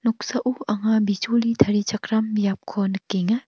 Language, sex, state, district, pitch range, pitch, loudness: Garo, female, Meghalaya, North Garo Hills, 205-230 Hz, 215 Hz, -22 LUFS